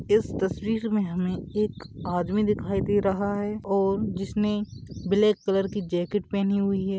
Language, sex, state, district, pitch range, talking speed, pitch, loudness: Bhojpuri, male, Uttar Pradesh, Gorakhpur, 195-210 Hz, 165 wpm, 200 Hz, -26 LUFS